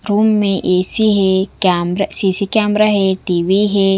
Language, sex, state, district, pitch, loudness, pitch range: Hindi, female, Punjab, Kapurthala, 195 Hz, -14 LUFS, 190-210 Hz